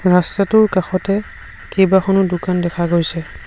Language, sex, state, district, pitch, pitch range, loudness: Assamese, male, Assam, Sonitpur, 185 Hz, 175-195 Hz, -16 LUFS